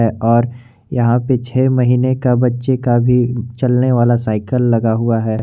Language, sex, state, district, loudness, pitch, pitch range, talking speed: Hindi, male, Jharkhand, Garhwa, -15 LUFS, 120 Hz, 115-125 Hz, 165 wpm